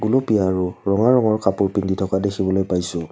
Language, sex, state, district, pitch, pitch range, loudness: Assamese, male, Assam, Kamrup Metropolitan, 95 Hz, 95-105 Hz, -19 LUFS